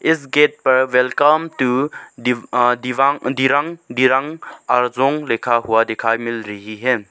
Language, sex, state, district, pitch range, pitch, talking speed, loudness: Hindi, male, Arunachal Pradesh, Lower Dibang Valley, 120-140 Hz, 125 Hz, 145 wpm, -17 LUFS